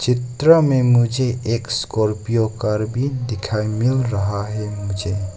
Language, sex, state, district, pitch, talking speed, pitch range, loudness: Hindi, male, Arunachal Pradesh, Lower Dibang Valley, 115 Hz, 135 wpm, 105-125 Hz, -19 LUFS